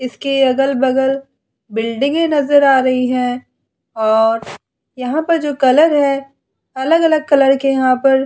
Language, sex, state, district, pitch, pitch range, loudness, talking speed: Hindi, female, Uttar Pradesh, Hamirpur, 270 Hz, 255-285 Hz, -14 LUFS, 140 wpm